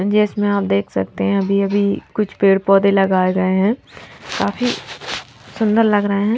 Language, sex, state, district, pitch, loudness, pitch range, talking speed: Hindi, female, Haryana, Charkhi Dadri, 200 Hz, -17 LUFS, 190-210 Hz, 180 wpm